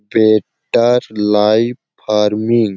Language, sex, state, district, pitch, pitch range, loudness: Hindi, male, Chhattisgarh, Sarguja, 110 Hz, 105-120 Hz, -14 LUFS